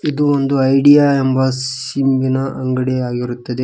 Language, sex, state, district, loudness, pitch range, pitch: Kannada, male, Karnataka, Koppal, -15 LUFS, 130-140 Hz, 130 Hz